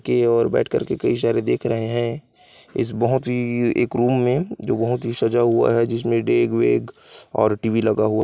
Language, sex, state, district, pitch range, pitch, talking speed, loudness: Hindi, male, Chhattisgarh, Kabirdham, 110-120 Hz, 115 Hz, 220 wpm, -20 LUFS